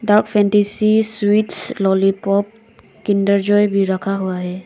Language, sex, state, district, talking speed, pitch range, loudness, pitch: Hindi, female, Arunachal Pradesh, Papum Pare, 105 wpm, 195-210 Hz, -16 LUFS, 205 Hz